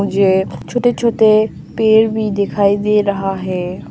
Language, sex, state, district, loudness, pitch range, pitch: Hindi, female, Arunachal Pradesh, Papum Pare, -15 LUFS, 195-220 Hz, 205 Hz